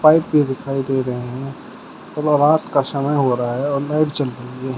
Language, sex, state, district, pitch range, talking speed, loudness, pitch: Hindi, male, Uttar Pradesh, Shamli, 130-150 Hz, 225 wpm, -19 LUFS, 140 Hz